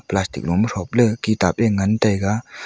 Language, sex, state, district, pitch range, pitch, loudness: Wancho, female, Arunachal Pradesh, Longding, 95-110 Hz, 105 Hz, -19 LUFS